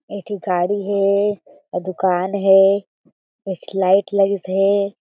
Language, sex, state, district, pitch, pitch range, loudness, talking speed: Chhattisgarhi, female, Chhattisgarh, Jashpur, 195 Hz, 185-200 Hz, -18 LUFS, 145 wpm